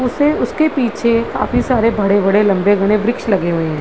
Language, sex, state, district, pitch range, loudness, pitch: Hindi, female, Bihar, Madhepura, 200-245 Hz, -15 LUFS, 230 Hz